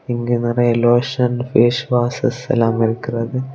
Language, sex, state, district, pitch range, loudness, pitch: Tamil, male, Tamil Nadu, Kanyakumari, 120-125 Hz, -17 LUFS, 120 Hz